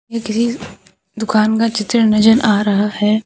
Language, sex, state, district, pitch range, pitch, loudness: Hindi, female, Jharkhand, Deoghar, 210-230 Hz, 220 Hz, -15 LUFS